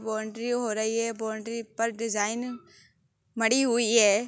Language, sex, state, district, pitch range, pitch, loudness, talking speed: Hindi, female, Uttar Pradesh, Hamirpur, 220-235 Hz, 230 Hz, -27 LUFS, 140 wpm